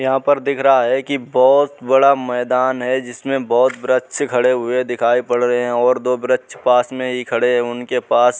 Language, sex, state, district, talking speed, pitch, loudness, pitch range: Hindi, male, Uttar Pradesh, Muzaffarnagar, 215 wpm, 125 Hz, -16 LUFS, 125-130 Hz